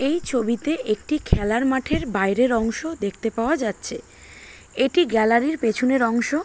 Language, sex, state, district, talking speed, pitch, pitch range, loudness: Bengali, female, West Bengal, Malda, 140 wpm, 245 Hz, 225-295 Hz, -22 LUFS